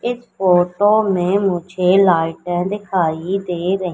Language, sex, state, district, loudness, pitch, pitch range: Hindi, female, Madhya Pradesh, Katni, -17 LUFS, 185 Hz, 175-195 Hz